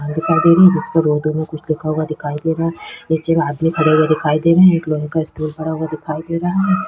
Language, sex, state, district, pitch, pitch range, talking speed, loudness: Hindi, female, Chhattisgarh, Kabirdham, 160 Hz, 155-165 Hz, 295 wpm, -16 LUFS